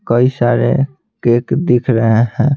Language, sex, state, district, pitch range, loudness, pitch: Hindi, male, Bihar, Patna, 120-135 Hz, -14 LUFS, 120 Hz